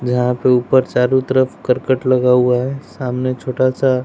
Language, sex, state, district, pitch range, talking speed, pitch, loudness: Hindi, male, Bihar, West Champaran, 125-130 Hz, 180 wpm, 130 Hz, -16 LUFS